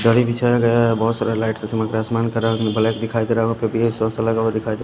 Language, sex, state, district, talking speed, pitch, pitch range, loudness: Hindi, male, Himachal Pradesh, Shimla, 250 wpm, 115 Hz, 110-115 Hz, -19 LUFS